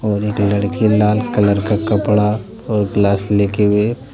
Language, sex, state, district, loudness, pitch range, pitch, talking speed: Hindi, male, Jharkhand, Deoghar, -16 LUFS, 100-105 Hz, 105 Hz, 160 wpm